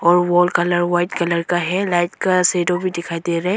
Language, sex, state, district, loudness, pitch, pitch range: Hindi, female, Arunachal Pradesh, Longding, -18 LUFS, 175 Hz, 175-180 Hz